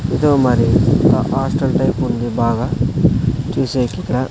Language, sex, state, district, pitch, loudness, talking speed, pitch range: Telugu, male, Andhra Pradesh, Sri Satya Sai, 125 Hz, -16 LUFS, 125 wpm, 120-135 Hz